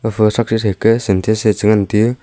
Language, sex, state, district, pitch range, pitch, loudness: Wancho, male, Arunachal Pradesh, Longding, 105-110 Hz, 110 Hz, -14 LUFS